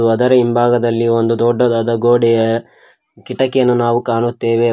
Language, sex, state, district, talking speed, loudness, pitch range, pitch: Kannada, male, Karnataka, Koppal, 115 wpm, -14 LUFS, 115-120 Hz, 120 Hz